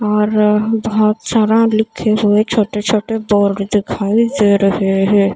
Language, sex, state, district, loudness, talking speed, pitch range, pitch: Hindi, female, Maharashtra, Mumbai Suburban, -14 LUFS, 135 wpm, 205-220 Hz, 210 Hz